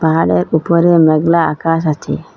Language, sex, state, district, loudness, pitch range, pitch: Bengali, female, Assam, Hailakandi, -13 LUFS, 155-170 Hz, 160 Hz